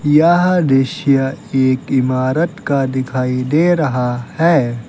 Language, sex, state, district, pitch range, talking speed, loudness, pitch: Hindi, male, Uttar Pradesh, Lucknow, 130-160 Hz, 110 wpm, -15 LUFS, 135 Hz